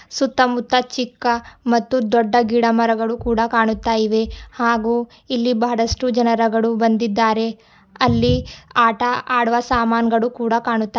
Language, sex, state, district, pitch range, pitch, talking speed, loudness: Kannada, female, Karnataka, Bidar, 230-245 Hz, 235 Hz, 110 wpm, -18 LUFS